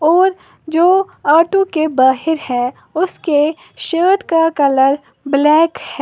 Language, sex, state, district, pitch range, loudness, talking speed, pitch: Hindi, female, Uttar Pradesh, Lalitpur, 290-355 Hz, -14 LUFS, 120 wpm, 320 Hz